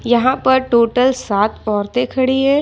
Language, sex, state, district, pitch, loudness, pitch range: Hindi, female, Jharkhand, Ranchi, 250 Hz, -15 LUFS, 230-260 Hz